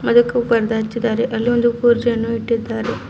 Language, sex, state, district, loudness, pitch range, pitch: Kannada, female, Karnataka, Bidar, -18 LUFS, 225-240 Hz, 235 Hz